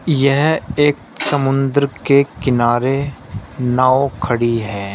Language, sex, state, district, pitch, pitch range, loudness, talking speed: Hindi, male, Uttar Pradesh, Shamli, 135 Hz, 120-140 Hz, -16 LUFS, 95 wpm